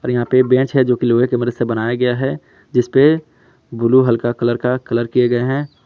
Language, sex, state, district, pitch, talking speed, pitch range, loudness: Hindi, male, Jharkhand, Palamu, 125 Hz, 215 wpm, 120-130 Hz, -16 LUFS